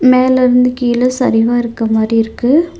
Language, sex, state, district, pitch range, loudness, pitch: Tamil, female, Tamil Nadu, Nilgiris, 230-255 Hz, -12 LUFS, 250 Hz